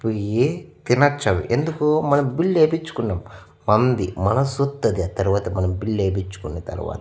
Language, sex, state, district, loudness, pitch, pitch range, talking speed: Telugu, male, Andhra Pradesh, Annamaya, -21 LUFS, 115 Hz, 95-145 Hz, 130 wpm